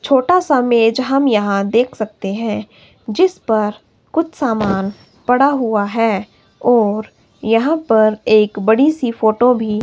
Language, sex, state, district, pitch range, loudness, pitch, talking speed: Hindi, female, Himachal Pradesh, Shimla, 215-260 Hz, -15 LUFS, 225 Hz, 140 wpm